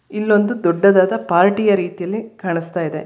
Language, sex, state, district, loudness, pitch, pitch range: Kannada, female, Karnataka, Bangalore, -17 LUFS, 190 Hz, 175-210 Hz